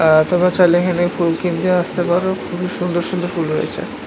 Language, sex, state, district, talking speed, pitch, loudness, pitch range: Bengali, male, West Bengal, North 24 Parganas, 190 wpm, 175 Hz, -17 LUFS, 175-180 Hz